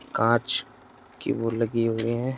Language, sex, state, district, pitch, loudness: Hindi, male, Uttar Pradesh, Jyotiba Phule Nagar, 115 Hz, -26 LUFS